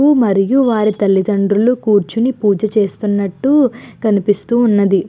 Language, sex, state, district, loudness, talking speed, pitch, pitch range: Telugu, female, Andhra Pradesh, Guntur, -14 LUFS, 105 wpm, 215 Hz, 200-240 Hz